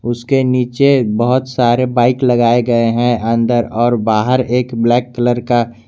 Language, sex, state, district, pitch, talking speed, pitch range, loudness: Hindi, male, Jharkhand, Garhwa, 120 Hz, 155 wpm, 120-125 Hz, -14 LUFS